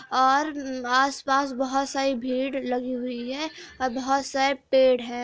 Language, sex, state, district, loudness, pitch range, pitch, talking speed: Hindi, female, Bihar, Lakhisarai, -25 LUFS, 255-275 Hz, 265 Hz, 160 wpm